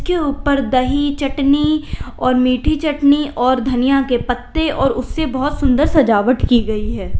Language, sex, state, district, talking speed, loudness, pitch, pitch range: Hindi, female, Uttar Pradesh, Lalitpur, 150 wpm, -16 LUFS, 275 Hz, 255-295 Hz